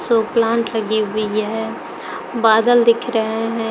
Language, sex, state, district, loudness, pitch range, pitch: Hindi, female, Uttar Pradesh, Etah, -17 LUFS, 220-230 Hz, 225 Hz